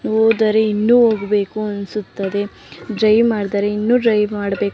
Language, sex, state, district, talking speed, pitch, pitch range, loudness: Kannada, female, Karnataka, Mysore, 115 wpm, 210 Hz, 205-220 Hz, -17 LUFS